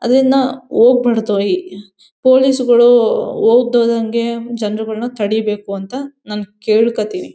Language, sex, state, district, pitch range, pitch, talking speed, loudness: Kannada, female, Karnataka, Mysore, 210-250 Hz, 235 Hz, 90 wpm, -14 LUFS